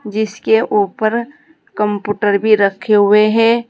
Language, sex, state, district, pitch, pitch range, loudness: Hindi, female, Uttar Pradesh, Saharanpur, 215 Hz, 205-230 Hz, -14 LUFS